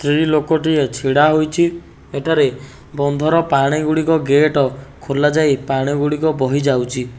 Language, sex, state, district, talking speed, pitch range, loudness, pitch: Odia, male, Odisha, Nuapada, 75 wpm, 135-155 Hz, -16 LUFS, 145 Hz